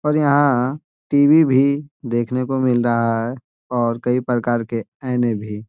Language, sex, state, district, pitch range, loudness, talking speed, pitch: Hindi, male, Bihar, Gaya, 120-140 Hz, -19 LUFS, 160 wpm, 125 Hz